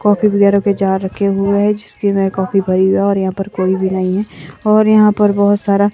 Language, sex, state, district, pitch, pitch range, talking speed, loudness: Hindi, female, Himachal Pradesh, Shimla, 200 Hz, 190-205 Hz, 240 wpm, -14 LUFS